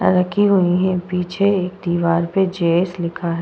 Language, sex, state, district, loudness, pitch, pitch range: Hindi, female, Uttar Pradesh, Budaun, -18 LUFS, 180 Hz, 170-190 Hz